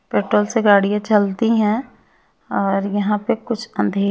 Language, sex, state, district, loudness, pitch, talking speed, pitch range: Hindi, female, Chhattisgarh, Raipur, -18 LUFS, 210 Hz, 145 wpm, 200-225 Hz